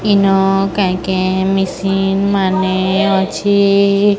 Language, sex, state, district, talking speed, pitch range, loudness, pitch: Odia, female, Odisha, Sambalpur, 85 wpm, 190-200 Hz, -14 LUFS, 195 Hz